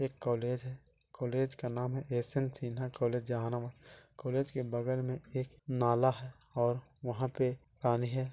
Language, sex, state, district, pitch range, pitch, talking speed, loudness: Hindi, male, Bihar, Jahanabad, 120-130 Hz, 130 Hz, 160 wpm, -35 LUFS